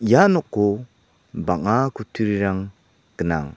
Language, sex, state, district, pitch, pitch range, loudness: Garo, male, Meghalaya, South Garo Hills, 105 Hz, 95-115 Hz, -21 LUFS